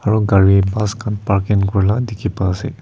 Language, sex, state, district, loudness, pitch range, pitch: Nagamese, male, Nagaland, Kohima, -16 LUFS, 100-105 Hz, 105 Hz